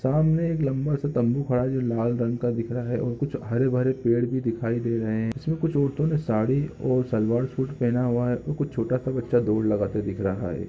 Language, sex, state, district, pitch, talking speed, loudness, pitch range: Hindi, male, Chhattisgarh, Raigarh, 125 Hz, 240 wpm, -25 LUFS, 115-135 Hz